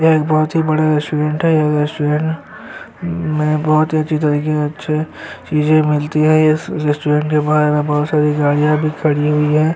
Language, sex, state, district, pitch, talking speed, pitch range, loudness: Hindi, male, Chhattisgarh, Sukma, 155 Hz, 165 wpm, 150-155 Hz, -15 LUFS